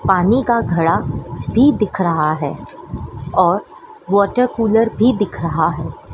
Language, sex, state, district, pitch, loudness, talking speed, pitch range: Hindi, female, Madhya Pradesh, Dhar, 205 Hz, -16 LUFS, 135 wpm, 170-235 Hz